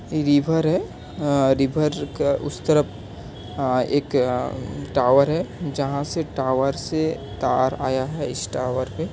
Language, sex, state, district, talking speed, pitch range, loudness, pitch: Hindi, male, Bihar, Kishanganj, 150 wpm, 130-150 Hz, -22 LUFS, 140 Hz